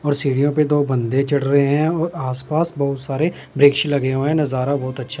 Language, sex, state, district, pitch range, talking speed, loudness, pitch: Hindi, male, Punjab, Pathankot, 135-150 Hz, 230 wpm, -19 LUFS, 140 Hz